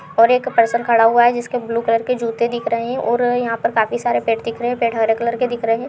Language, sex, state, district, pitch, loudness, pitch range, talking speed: Hindi, female, Uttar Pradesh, Jyotiba Phule Nagar, 235 Hz, -17 LUFS, 230-245 Hz, 315 wpm